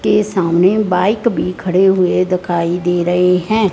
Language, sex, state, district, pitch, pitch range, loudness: Hindi, female, Punjab, Fazilka, 180 Hz, 175-200 Hz, -14 LUFS